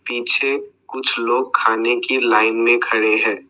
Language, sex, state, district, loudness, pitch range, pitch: Hindi, male, Assam, Sonitpur, -16 LUFS, 110-125 Hz, 120 Hz